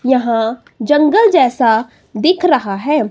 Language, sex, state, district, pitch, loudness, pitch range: Hindi, female, Himachal Pradesh, Shimla, 255 Hz, -13 LUFS, 225-300 Hz